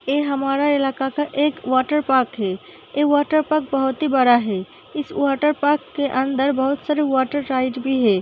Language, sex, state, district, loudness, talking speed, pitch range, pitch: Hindi, female, Uttar Pradesh, Deoria, -20 LUFS, 170 wpm, 260-295 Hz, 275 Hz